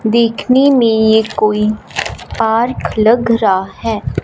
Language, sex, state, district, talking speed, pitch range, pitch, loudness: Hindi, female, Punjab, Fazilka, 115 wpm, 215-230 Hz, 220 Hz, -13 LUFS